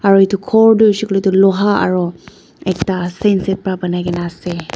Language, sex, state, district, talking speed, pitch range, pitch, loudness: Nagamese, female, Nagaland, Dimapur, 165 wpm, 180-200 Hz, 190 Hz, -15 LUFS